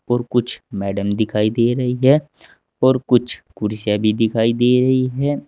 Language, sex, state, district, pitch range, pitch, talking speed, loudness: Hindi, male, Uttar Pradesh, Saharanpur, 105-130 Hz, 120 Hz, 165 wpm, -18 LUFS